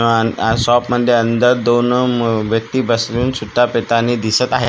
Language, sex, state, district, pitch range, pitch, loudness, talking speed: Marathi, male, Maharashtra, Gondia, 115-120 Hz, 120 Hz, -15 LUFS, 140 wpm